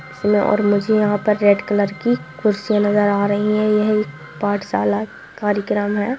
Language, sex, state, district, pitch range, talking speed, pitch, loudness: Hindi, female, Bihar, Saharsa, 205-210 Hz, 165 wpm, 205 Hz, -18 LUFS